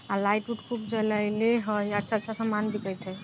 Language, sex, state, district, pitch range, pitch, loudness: Bajjika, female, Bihar, Vaishali, 205-225 Hz, 215 Hz, -28 LUFS